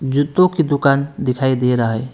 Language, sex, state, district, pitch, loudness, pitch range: Hindi, male, West Bengal, Alipurduar, 140 Hz, -17 LUFS, 125-145 Hz